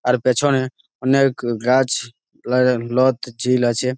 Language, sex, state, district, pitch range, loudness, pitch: Bengali, male, West Bengal, Malda, 120-130 Hz, -18 LUFS, 125 Hz